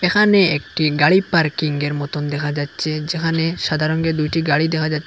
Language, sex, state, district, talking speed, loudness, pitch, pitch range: Bengali, male, Assam, Hailakandi, 165 wpm, -18 LUFS, 155 Hz, 150-165 Hz